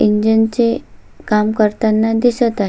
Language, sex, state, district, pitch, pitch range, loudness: Marathi, female, Maharashtra, Sindhudurg, 220 Hz, 215-230 Hz, -15 LUFS